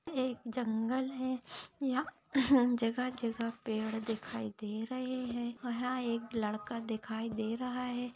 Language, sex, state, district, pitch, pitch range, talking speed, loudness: Hindi, female, Maharashtra, Aurangabad, 240 Hz, 225-255 Hz, 130 wpm, -36 LUFS